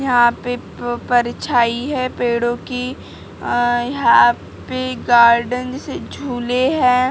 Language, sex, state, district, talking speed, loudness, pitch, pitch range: Hindi, female, Maharashtra, Gondia, 120 wpm, -17 LUFS, 245 Hz, 240-255 Hz